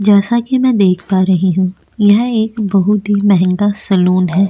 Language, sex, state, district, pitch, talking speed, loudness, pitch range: Hindi, female, Uttarakhand, Tehri Garhwal, 200 Hz, 185 wpm, -13 LUFS, 185-210 Hz